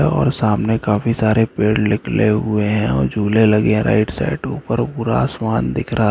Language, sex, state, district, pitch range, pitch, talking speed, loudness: Hindi, male, Jharkhand, Jamtara, 105-110 Hz, 105 Hz, 185 wpm, -17 LUFS